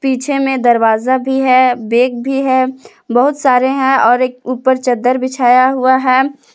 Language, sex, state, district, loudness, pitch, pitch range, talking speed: Hindi, female, Jharkhand, Palamu, -12 LUFS, 255 Hz, 250-265 Hz, 165 wpm